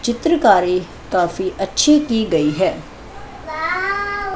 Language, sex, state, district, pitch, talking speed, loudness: Hindi, female, Chandigarh, Chandigarh, 240 Hz, 85 wpm, -17 LUFS